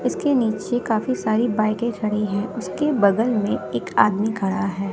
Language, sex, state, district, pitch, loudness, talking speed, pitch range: Hindi, female, Bihar, West Champaran, 215 Hz, -21 LUFS, 170 wpm, 200-235 Hz